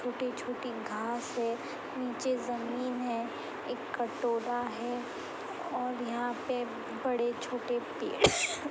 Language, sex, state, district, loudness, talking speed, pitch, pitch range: Hindi, female, Uttar Pradesh, Etah, -34 LUFS, 110 wpm, 245 Hz, 240-255 Hz